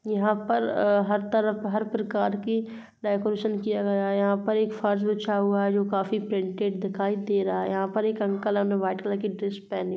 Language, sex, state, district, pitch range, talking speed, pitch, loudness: Hindi, female, Bihar, East Champaran, 200-215 Hz, 225 wpm, 205 Hz, -26 LUFS